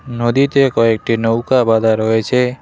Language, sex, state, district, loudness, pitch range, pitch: Bengali, male, West Bengal, Cooch Behar, -14 LUFS, 115-125 Hz, 120 Hz